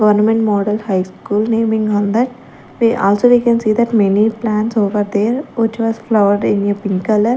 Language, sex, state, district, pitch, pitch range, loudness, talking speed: English, female, Chandigarh, Chandigarh, 215 Hz, 205-230 Hz, -15 LUFS, 185 wpm